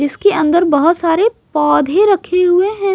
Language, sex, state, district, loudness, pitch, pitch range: Hindi, female, Maharashtra, Mumbai Suburban, -13 LUFS, 350 Hz, 315-400 Hz